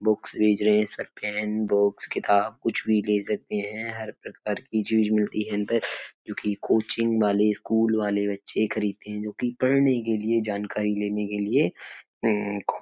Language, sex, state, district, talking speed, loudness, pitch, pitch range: Hindi, male, Uttar Pradesh, Etah, 165 wpm, -25 LUFS, 105 Hz, 105-110 Hz